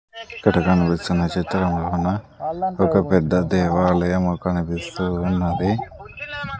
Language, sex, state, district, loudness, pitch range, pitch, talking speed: Telugu, male, Andhra Pradesh, Sri Satya Sai, -21 LUFS, 90-95 Hz, 90 Hz, 75 wpm